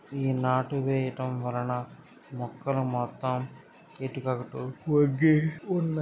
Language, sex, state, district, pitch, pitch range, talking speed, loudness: Telugu, male, Andhra Pradesh, Srikakulam, 130 Hz, 125-145 Hz, 100 wpm, -29 LUFS